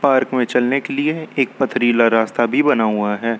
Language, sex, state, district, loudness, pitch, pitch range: Hindi, male, Uttar Pradesh, Lucknow, -17 LUFS, 125 Hz, 115-135 Hz